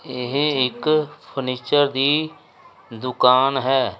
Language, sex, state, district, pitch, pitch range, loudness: Punjabi, male, Punjab, Kapurthala, 135 Hz, 130-145 Hz, -20 LUFS